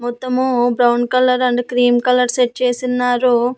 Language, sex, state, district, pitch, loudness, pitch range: Telugu, female, Andhra Pradesh, Annamaya, 250 Hz, -15 LUFS, 245-250 Hz